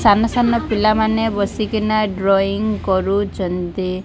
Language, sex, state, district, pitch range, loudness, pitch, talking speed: Odia, female, Odisha, Malkangiri, 195-220 Hz, -18 LUFS, 210 Hz, 75 wpm